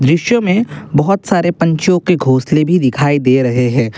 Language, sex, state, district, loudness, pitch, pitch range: Hindi, male, Assam, Kamrup Metropolitan, -13 LUFS, 160 Hz, 130-180 Hz